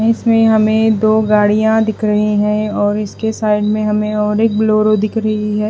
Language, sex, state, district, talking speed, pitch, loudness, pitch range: Hindi, female, Bihar, West Champaran, 190 wpm, 215 Hz, -14 LUFS, 210-220 Hz